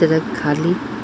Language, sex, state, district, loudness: Bhojpuri, female, Bihar, Saran, -19 LUFS